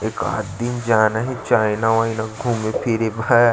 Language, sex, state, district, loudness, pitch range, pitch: Chhattisgarhi, male, Chhattisgarh, Sarguja, -20 LUFS, 110-120 Hz, 115 Hz